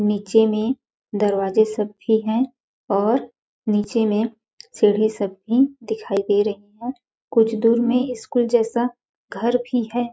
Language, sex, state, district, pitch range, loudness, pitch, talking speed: Hindi, female, Chhattisgarh, Balrampur, 210-240 Hz, -21 LUFS, 225 Hz, 140 wpm